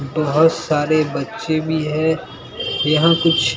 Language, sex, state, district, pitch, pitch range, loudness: Hindi, male, Bihar, Katihar, 155 Hz, 150-160 Hz, -18 LUFS